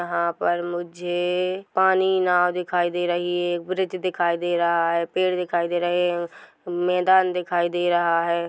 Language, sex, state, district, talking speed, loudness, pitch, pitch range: Hindi, female, Chhattisgarh, Korba, 170 wpm, -22 LUFS, 175 Hz, 175-180 Hz